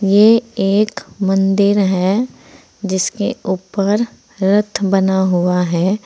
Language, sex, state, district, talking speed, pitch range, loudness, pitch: Hindi, female, Uttar Pradesh, Saharanpur, 100 wpm, 190-210 Hz, -16 LUFS, 195 Hz